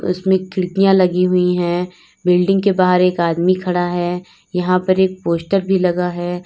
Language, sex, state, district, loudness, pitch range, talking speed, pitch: Hindi, female, Uttar Pradesh, Lalitpur, -16 LUFS, 175-185 Hz, 175 wpm, 180 Hz